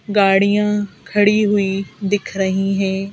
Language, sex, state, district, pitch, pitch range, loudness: Hindi, female, Madhya Pradesh, Bhopal, 200 Hz, 195-205 Hz, -17 LUFS